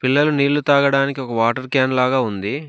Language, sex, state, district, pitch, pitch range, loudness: Telugu, male, Telangana, Komaram Bheem, 135 Hz, 130-140 Hz, -18 LUFS